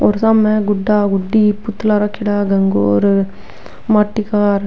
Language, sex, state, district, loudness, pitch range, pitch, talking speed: Rajasthani, female, Rajasthan, Nagaur, -15 LUFS, 200-215 Hz, 210 Hz, 140 wpm